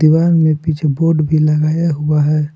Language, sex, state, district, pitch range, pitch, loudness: Hindi, male, Jharkhand, Palamu, 150-160 Hz, 155 Hz, -14 LUFS